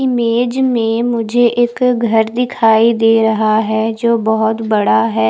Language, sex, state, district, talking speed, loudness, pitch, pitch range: Hindi, female, Odisha, Khordha, 145 wpm, -13 LUFS, 225 Hz, 220-240 Hz